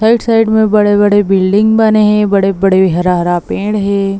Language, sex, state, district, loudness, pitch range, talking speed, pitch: Chhattisgarhi, female, Chhattisgarh, Bilaspur, -11 LUFS, 195-215 Hz, 200 wpm, 205 Hz